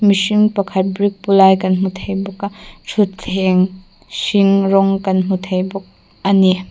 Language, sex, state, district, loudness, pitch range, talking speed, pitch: Mizo, female, Mizoram, Aizawl, -15 LUFS, 190-200 Hz, 170 wpm, 195 Hz